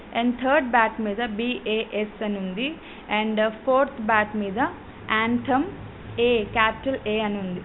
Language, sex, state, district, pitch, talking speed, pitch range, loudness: Telugu, female, Telangana, Karimnagar, 225 Hz, 135 wpm, 215-245 Hz, -24 LUFS